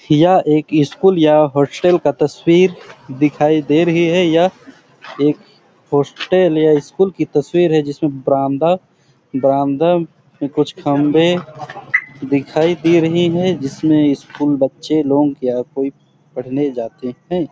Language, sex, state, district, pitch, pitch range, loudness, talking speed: Hindi, male, Chhattisgarh, Sarguja, 150 Hz, 140-170 Hz, -15 LUFS, 125 wpm